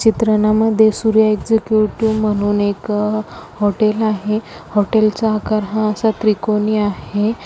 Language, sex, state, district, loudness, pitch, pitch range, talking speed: Marathi, female, Maharashtra, Solapur, -16 LUFS, 215 Hz, 210-220 Hz, 115 wpm